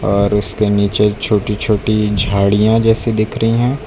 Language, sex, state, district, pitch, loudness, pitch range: Hindi, male, Uttar Pradesh, Lucknow, 105 Hz, -14 LUFS, 105-115 Hz